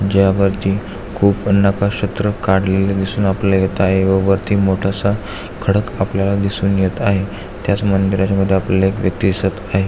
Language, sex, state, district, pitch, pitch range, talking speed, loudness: Marathi, male, Maharashtra, Aurangabad, 95 Hz, 95-100 Hz, 150 wpm, -16 LUFS